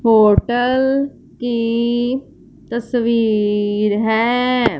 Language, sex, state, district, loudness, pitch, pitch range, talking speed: Hindi, female, Punjab, Fazilka, -17 LUFS, 235 Hz, 220-245 Hz, 50 wpm